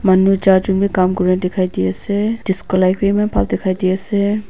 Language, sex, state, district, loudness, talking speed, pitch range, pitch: Nagamese, female, Nagaland, Dimapur, -16 LUFS, 240 wpm, 185-200 Hz, 190 Hz